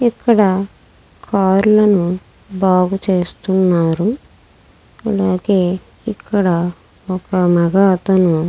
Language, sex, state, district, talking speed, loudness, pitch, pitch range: Telugu, female, Andhra Pradesh, Krishna, 65 wpm, -15 LUFS, 190 Hz, 180-205 Hz